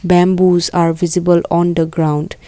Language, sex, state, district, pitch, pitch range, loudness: English, female, Assam, Kamrup Metropolitan, 175 Hz, 165-180 Hz, -14 LUFS